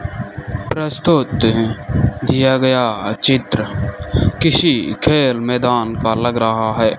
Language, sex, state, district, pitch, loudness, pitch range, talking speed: Hindi, male, Rajasthan, Bikaner, 120 Hz, -16 LUFS, 110-130 Hz, 105 wpm